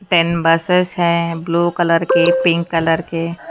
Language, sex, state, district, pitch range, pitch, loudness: Hindi, female, Haryana, Charkhi Dadri, 165-175 Hz, 170 Hz, -16 LUFS